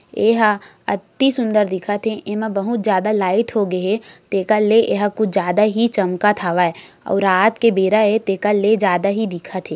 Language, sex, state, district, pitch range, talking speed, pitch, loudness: Hindi, female, Chhattisgarh, Raigarh, 195-220 Hz, 185 wpm, 210 Hz, -17 LUFS